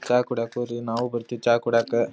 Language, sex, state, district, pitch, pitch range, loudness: Kannada, male, Karnataka, Dharwad, 120 Hz, 115-120 Hz, -25 LUFS